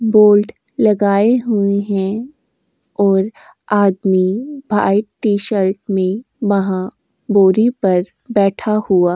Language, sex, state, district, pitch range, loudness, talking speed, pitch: Hindi, female, Uttar Pradesh, Jyotiba Phule Nagar, 195-220 Hz, -16 LUFS, 105 wpm, 205 Hz